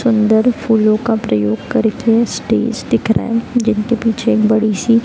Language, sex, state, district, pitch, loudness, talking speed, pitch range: Hindi, female, Bihar, East Champaran, 225 Hz, -15 LUFS, 165 wpm, 215-235 Hz